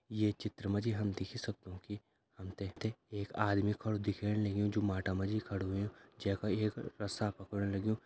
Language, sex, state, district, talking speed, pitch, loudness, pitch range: Kumaoni, male, Uttarakhand, Tehri Garhwal, 185 wpm, 105 Hz, -38 LUFS, 100-110 Hz